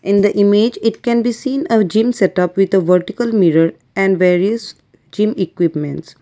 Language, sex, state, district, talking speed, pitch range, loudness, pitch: English, female, Assam, Kamrup Metropolitan, 195 wpm, 180-225 Hz, -15 LUFS, 200 Hz